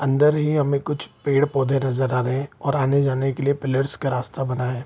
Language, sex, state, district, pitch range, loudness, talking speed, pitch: Hindi, male, Bihar, Supaul, 130-140 Hz, -22 LUFS, 220 wpm, 135 Hz